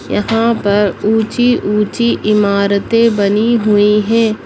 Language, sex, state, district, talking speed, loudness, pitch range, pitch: Hindi, female, Bihar, Jamui, 95 wpm, -13 LUFS, 205-230 Hz, 215 Hz